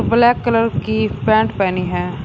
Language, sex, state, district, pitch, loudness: Hindi, male, Uttar Pradesh, Shamli, 180 Hz, -17 LUFS